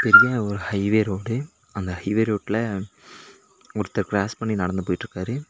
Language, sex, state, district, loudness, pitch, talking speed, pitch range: Tamil, male, Tamil Nadu, Nilgiris, -23 LUFS, 105 Hz, 130 wpm, 100-115 Hz